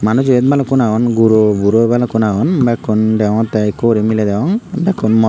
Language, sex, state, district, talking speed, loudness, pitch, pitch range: Chakma, male, Tripura, Unakoti, 170 wpm, -13 LUFS, 110 Hz, 110-125 Hz